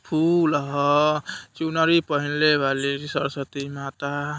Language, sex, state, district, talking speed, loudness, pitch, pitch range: Hindi, male, Uttar Pradesh, Deoria, 95 wpm, -23 LUFS, 145 Hz, 140-155 Hz